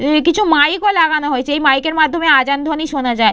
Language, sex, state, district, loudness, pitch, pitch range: Bengali, female, West Bengal, Purulia, -14 LUFS, 300 Hz, 275-320 Hz